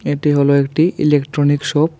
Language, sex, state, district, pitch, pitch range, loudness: Bengali, male, Tripura, West Tripura, 145 Hz, 140-155 Hz, -15 LUFS